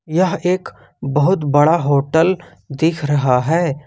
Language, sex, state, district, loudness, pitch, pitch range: Hindi, male, Jharkhand, Ranchi, -16 LUFS, 155 Hz, 145-170 Hz